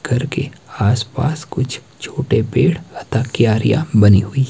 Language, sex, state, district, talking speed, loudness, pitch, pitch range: Hindi, male, Himachal Pradesh, Shimla, 135 wpm, -17 LUFS, 130 Hz, 115-145 Hz